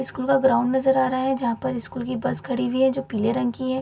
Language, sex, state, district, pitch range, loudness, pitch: Hindi, female, Bihar, Bhagalpur, 245-265 Hz, -23 LUFS, 255 Hz